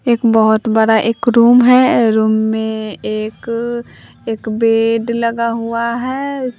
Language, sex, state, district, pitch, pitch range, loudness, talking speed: Hindi, female, Bihar, West Champaran, 230 Hz, 220-235 Hz, -14 LUFS, 125 wpm